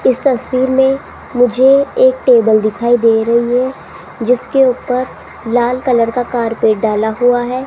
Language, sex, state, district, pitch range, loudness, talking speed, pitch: Hindi, female, Rajasthan, Jaipur, 235-260 Hz, -13 LUFS, 150 wpm, 245 Hz